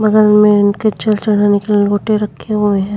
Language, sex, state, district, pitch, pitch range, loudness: Hindi, female, Uttar Pradesh, Muzaffarnagar, 210 Hz, 205-215 Hz, -13 LUFS